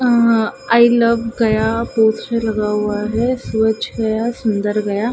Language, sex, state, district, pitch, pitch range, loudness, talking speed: Hindi, female, Bihar, Gaya, 225 Hz, 215-235 Hz, -16 LUFS, 140 wpm